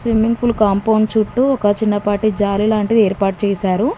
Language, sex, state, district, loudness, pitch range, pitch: Telugu, female, Telangana, Mahabubabad, -16 LUFS, 205-225 Hz, 215 Hz